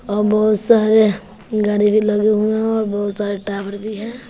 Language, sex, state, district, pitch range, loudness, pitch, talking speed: Hindi, female, Bihar, West Champaran, 205-215 Hz, -17 LUFS, 210 Hz, 195 wpm